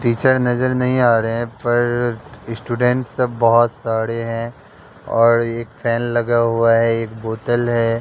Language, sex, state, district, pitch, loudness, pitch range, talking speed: Hindi, male, Bihar, Katihar, 120 Hz, -18 LUFS, 115-120 Hz, 155 wpm